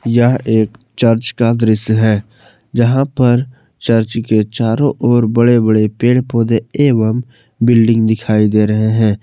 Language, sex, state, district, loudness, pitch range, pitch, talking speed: Hindi, male, Jharkhand, Palamu, -13 LUFS, 110-120 Hz, 115 Hz, 145 wpm